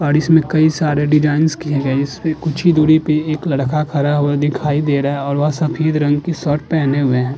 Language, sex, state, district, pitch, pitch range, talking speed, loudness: Hindi, male, Uttar Pradesh, Jalaun, 150 Hz, 145-155 Hz, 235 wpm, -16 LUFS